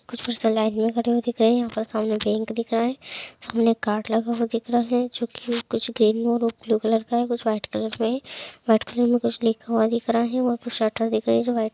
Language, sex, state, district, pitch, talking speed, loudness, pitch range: Hindi, female, Chhattisgarh, Raigarh, 230 Hz, 215 wpm, -23 LUFS, 220-240 Hz